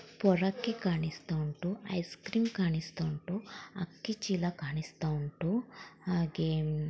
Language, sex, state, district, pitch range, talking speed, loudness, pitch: Kannada, female, Karnataka, Chamarajanagar, 160-195 Hz, 105 wpm, -34 LUFS, 175 Hz